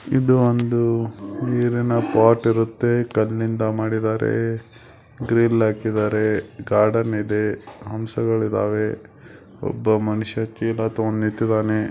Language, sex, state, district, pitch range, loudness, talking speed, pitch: Kannada, male, Karnataka, Belgaum, 110-115 Hz, -21 LUFS, 70 wpm, 110 Hz